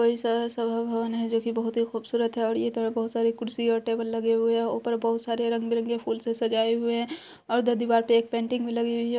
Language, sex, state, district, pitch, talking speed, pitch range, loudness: Hindi, female, Bihar, Araria, 230 Hz, 255 wpm, 230-235 Hz, -27 LUFS